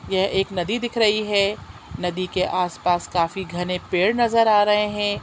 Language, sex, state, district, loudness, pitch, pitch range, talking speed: Hindi, female, Chhattisgarh, Raigarh, -21 LUFS, 195 Hz, 180-210 Hz, 185 wpm